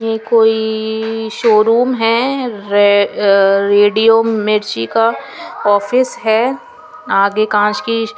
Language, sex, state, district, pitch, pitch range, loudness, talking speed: Hindi, female, Chandigarh, Chandigarh, 220 Hz, 210-230 Hz, -13 LUFS, 125 wpm